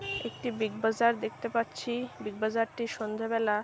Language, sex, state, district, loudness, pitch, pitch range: Bengali, female, West Bengal, Purulia, -31 LUFS, 225 Hz, 215-235 Hz